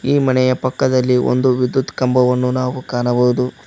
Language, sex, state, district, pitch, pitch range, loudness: Kannada, male, Karnataka, Koppal, 125 Hz, 125-130 Hz, -16 LUFS